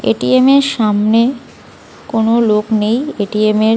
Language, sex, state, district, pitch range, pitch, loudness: Bengali, female, West Bengal, North 24 Parganas, 210-245 Hz, 220 Hz, -13 LUFS